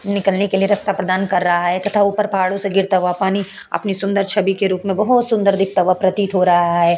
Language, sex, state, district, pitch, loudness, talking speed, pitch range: Hindi, female, Uttar Pradesh, Hamirpur, 195 Hz, -17 LUFS, 250 wpm, 185-200 Hz